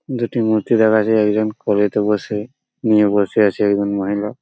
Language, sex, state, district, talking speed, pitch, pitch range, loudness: Bengali, male, West Bengal, Purulia, 150 wpm, 105 Hz, 105-110 Hz, -17 LUFS